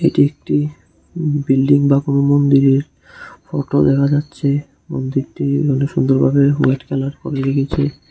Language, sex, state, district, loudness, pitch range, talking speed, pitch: Bengali, male, Tripura, West Tripura, -16 LUFS, 135-145 Hz, 120 wpm, 140 Hz